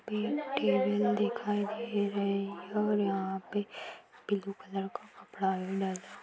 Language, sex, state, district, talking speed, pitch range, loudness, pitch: Hindi, female, Chhattisgarh, Bilaspur, 145 wpm, 190-210 Hz, -33 LUFS, 200 Hz